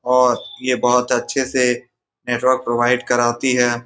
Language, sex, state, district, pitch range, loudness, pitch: Hindi, male, Bihar, Saran, 120-125 Hz, -18 LUFS, 125 Hz